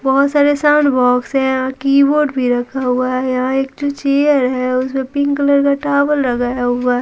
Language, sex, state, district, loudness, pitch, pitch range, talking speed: Hindi, female, Bihar, Patna, -15 LUFS, 270 Hz, 255-285 Hz, 195 wpm